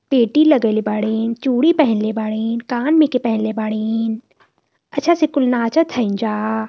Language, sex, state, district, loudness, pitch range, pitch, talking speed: Hindi, female, Uttar Pradesh, Varanasi, -17 LUFS, 220-280 Hz, 230 Hz, 135 wpm